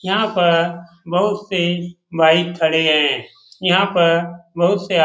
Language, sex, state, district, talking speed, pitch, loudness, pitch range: Hindi, male, Bihar, Jamui, 155 wpm, 175 Hz, -17 LUFS, 170-185 Hz